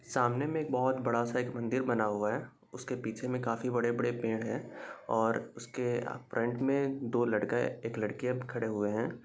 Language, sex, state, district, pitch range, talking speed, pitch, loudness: Hindi, male, Bihar, Saharsa, 115-125 Hz, 190 wpm, 120 Hz, -33 LUFS